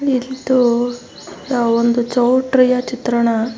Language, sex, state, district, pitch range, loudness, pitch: Kannada, female, Karnataka, Mysore, 235-255 Hz, -16 LUFS, 245 Hz